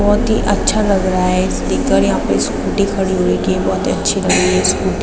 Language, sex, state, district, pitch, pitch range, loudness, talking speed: Hindi, female, Uttarakhand, Tehri Garhwal, 190 Hz, 185-205 Hz, -15 LUFS, 250 wpm